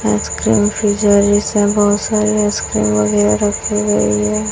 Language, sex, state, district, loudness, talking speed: Hindi, female, Chhattisgarh, Raipur, -14 LUFS, 145 wpm